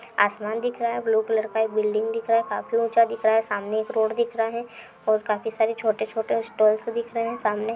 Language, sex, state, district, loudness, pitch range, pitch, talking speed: Hindi, female, Uttar Pradesh, Hamirpur, -24 LUFS, 215-230 Hz, 225 Hz, 265 wpm